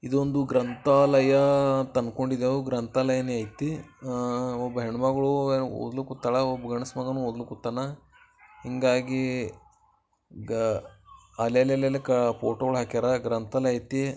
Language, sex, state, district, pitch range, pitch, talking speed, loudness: Kannada, male, Karnataka, Bijapur, 120-135 Hz, 130 Hz, 100 wpm, -26 LUFS